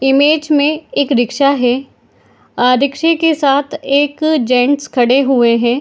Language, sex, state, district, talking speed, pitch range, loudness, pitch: Hindi, female, Bihar, Madhepura, 165 wpm, 250-295 Hz, -13 LUFS, 275 Hz